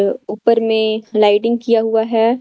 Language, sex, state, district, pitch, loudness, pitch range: Hindi, female, Jharkhand, Garhwa, 225 Hz, -15 LUFS, 215-230 Hz